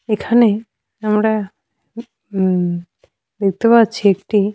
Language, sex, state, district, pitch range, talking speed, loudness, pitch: Bengali, female, Jharkhand, Sahebganj, 195-225 Hz, 80 wpm, -16 LUFS, 210 Hz